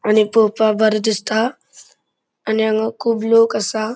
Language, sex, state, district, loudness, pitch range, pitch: Konkani, male, Goa, North and South Goa, -17 LUFS, 215-225 Hz, 220 Hz